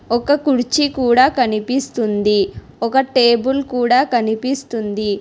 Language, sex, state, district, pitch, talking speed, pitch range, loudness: Telugu, female, Telangana, Hyderabad, 245 Hz, 90 wpm, 225-265 Hz, -16 LUFS